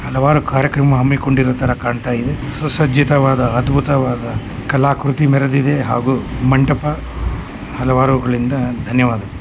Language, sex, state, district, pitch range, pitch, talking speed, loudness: Kannada, male, Karnataka, Mysore, 125-140 Hz, 135 Hz, 110 wpm, -16 LUFS